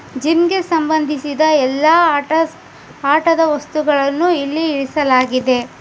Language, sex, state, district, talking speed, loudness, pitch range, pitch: Kannada, female, Karnataka, Bijapur, 85 wpm, -15 LUFS, 280-325 Hz, 305 Hz